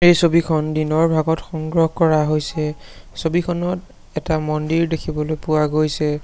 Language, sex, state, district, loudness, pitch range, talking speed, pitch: Assamese, male, Assam, Sonitpur, -19 LUFS, 155-165 Hz, 115 wpm, 155 Hz